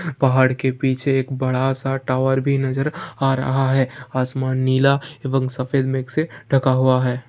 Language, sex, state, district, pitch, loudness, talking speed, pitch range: Hindi, male, Bihar, Jamui, 130 Hz, -20 LUFS, 180 wpm, 130-135 Hz